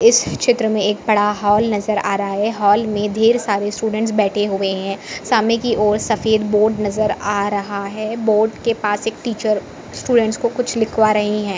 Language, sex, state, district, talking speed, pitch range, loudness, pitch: Hindi, female, Maharashtra, Aurangabad, 190 wpm, 205-220 Hz, -18 LUFS, 215 Hz